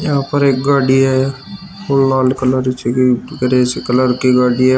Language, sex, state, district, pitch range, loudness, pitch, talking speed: Hindi, male, Uttar Pradesh, Shamli, 125-140 Hz, -14 LUFS, 130 Hz, 165 wpm